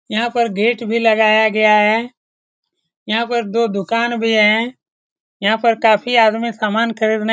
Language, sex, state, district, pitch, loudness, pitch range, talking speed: Hindi, male, Bihar, Saran, 225 Hz, -15 LUFS, 215-235 Hz, 165 wpm